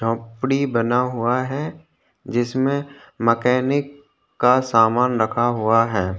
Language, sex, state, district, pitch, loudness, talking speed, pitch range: Hindi, male, Chhattisgarh, Korba, 125 Hz, -20 LUFS, 105 wpm, 115-135 Hz